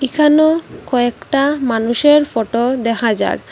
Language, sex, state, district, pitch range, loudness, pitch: Bengali, female, Assam, Hailakandi, 230-295 Hz, -14 LUFS, 260 Hz